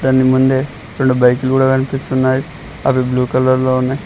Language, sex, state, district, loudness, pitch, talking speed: Telugu, male, Telangana, Mahabubabad, -14 LUFS, 130 Hz, 160 wpm